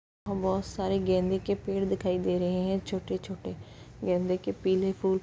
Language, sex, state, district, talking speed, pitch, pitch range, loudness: Hindi, female, Uttar Pradesh, Etah, 170 wpm, 190 Hz, 180-190 Hz, -30 LUFS